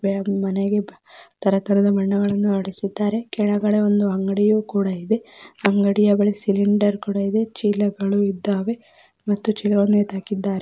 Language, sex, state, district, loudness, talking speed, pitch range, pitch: Kannada, female, Karnataka, Dakshina Kannada, -20 LUFS, 85 wpm, 200-210 Hz, 200 Hz